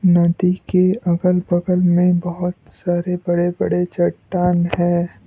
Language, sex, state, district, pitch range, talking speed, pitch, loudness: Hindi, male, Assam, Kamrup Metropolitan, 175-180 Hz, 125 wpm, 175 Hz, -18 LUFS